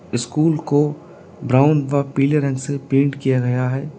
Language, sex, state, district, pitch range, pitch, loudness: Hindi, male, Uttar Pradesh, Lalitpur, 130-150 Hz, 140 Hz, -18 LUFS